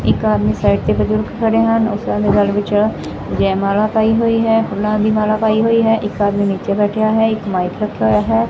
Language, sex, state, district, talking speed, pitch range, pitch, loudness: Punjabi, female, Punjab, Fazilka, 225 wpm, 195-220 Hz, 210 Hz, -15 LUFS